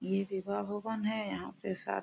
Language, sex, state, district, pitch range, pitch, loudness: Hindi, female, Jharkhand, Sahebganj, 195-215 Hz, 205 Hz, -36 LUFS